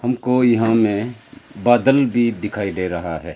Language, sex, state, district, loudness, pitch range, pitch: Hindi, male, Arunachal Pradesh, Lower Dibang Valley, -18 LUFS, 100-120 Hz, 115 Hz